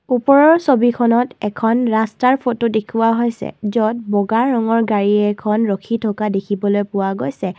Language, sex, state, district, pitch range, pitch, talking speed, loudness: Assamese, female, Assam, Kamrup Metropolitan, 205-240 Hz, 225 Hz, 135 wpm, -16 LUFS